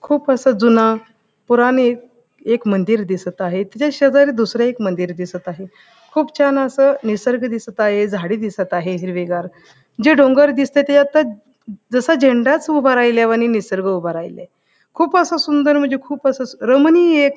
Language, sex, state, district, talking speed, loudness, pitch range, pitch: Marathi, female, Maharashtra, Pune, 150 wpm, -16 LUFS, 205-280 Hz, 240 Hz